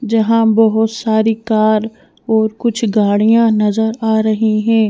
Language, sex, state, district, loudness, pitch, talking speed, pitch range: Hindi, female, Madhya Pradesh, Bhopal, -14 LUFS, 220 Hz, 135 wpm, 215-225 Hz